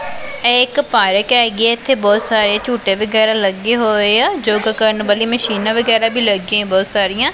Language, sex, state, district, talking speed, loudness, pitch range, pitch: Punjabi, female, Punjab, Pathankot, 180 wpm, -14 LUFS, 205-240 Hz, 220 Hz